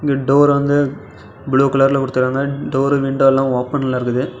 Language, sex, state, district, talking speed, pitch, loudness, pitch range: Tamil, male, Tamil Nadu, Namakkal, 120 wpm, 135 Hz, -16 LUFS, 130-140 Hz